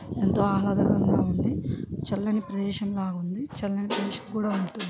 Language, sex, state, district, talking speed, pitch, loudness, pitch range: Telugu, female, Andhra Pradesh, Srikakulam, 145 wpm, 200 Hz, -27 LUFS, 195-210 Hz